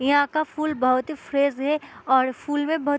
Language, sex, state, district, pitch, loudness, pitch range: Hindi, female, Bihar, East Champaran, 285 Hz, -23 LUFS, 270-305 Hz